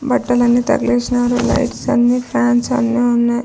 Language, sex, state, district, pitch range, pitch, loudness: Telugu, female, Andhra Pradesh, Sri Satya Sai, 240-245 Hz, 245 Hz, -15 LUFS